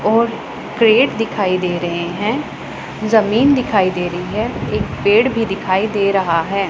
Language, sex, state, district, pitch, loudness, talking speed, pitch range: Hindi, female, Punjab, Pathankot, 205 Hz, -16 LUFS, 160 wpm, 185-225 Hz